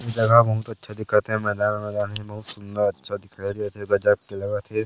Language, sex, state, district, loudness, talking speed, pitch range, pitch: Chhattisgarhi, male, Chhattisgarh, Sarguja, -23 LUFS, 220 wpm, 100-110 Hz, 105 Hz